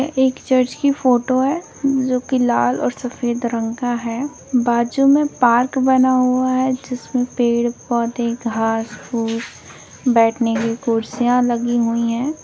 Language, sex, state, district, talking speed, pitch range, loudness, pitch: Hindi, female, Bihar, Lakhisarai, 145 wpm, 235-260 Hz, -18 LUFS, 245 Hz